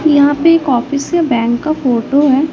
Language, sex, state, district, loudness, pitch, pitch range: Hindi, female, Chhattisgarh, Raipur, -13 LUFS, 285 Hz, 255-310 Hz